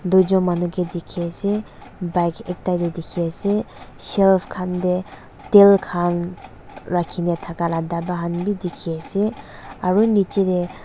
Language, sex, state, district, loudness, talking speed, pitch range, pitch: Nagamese, female, Nagaland, Dimapur, -20 LUFS, 135 wpm, 175-195 Hz, 180 Hz